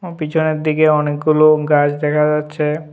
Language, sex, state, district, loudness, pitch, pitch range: Bengali, male, Tripura, West Tripura, -15 LUFS, 155 Hz, 150-155 Hz